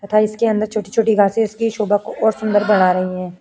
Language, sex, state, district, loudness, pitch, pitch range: Hindi, female, Uttar Pradesh, Jyotiba Phule Nagar, -17 LUFS, 215 Hz, 200-220 Hz